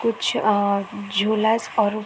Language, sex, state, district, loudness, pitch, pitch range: Hindi, female, Chhattisgarh, Korba, -21 LUFS, 215 Hz, 205-220 Hz